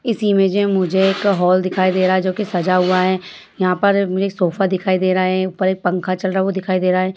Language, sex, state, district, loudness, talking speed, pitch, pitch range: Hindi, female, Bihar, Bhagalpur, -17 LUFS, 285 wpm, 185 Hz, 185-195 Hz